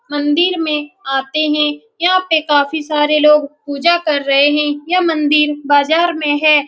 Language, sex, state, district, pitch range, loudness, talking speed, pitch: Hindi, female, Bihar, Saran, 290-315 Hz, -14 LUFS, 155 wpm, 300 Hz